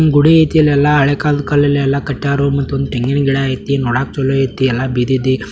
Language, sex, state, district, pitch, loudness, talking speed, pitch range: Kannada, male, Karnataka, Belgaum, 140 Hz, -14 LUFS, 205 wpm, 130-145 Hz